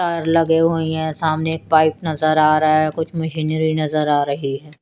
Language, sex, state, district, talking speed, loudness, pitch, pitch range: Hindi, female, Haryana, Charkhi Dadri, 200 wpm, -18 LUFS, 155 Hz, 155-160 Hz